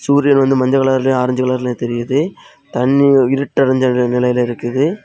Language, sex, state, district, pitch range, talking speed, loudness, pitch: Tamil, male, Tamil Nadu, Kanyakumari, 125-135 Hz, 130 wpm, -15 LUFS, 130 Hz